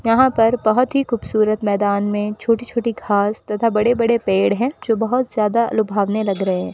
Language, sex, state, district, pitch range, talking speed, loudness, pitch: Hindi, female, Rajasthan, Bikaner, 205-235 Hz, 195 wpm, -18 LUFS, 220 Hz